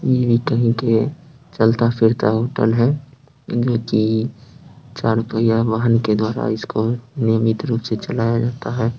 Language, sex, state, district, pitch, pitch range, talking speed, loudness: Hindi, male, Bihar, Sitamarhi, 115 Hz, 110-125 Hz, 135 wpm, -19 LUFS